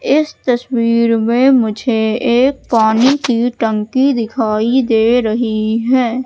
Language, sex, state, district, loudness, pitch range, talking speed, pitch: Hindi, female, Madhya Pradesh, Katni, -14 LUFS, 225-255 Hz, 115 wpm, 235 Hz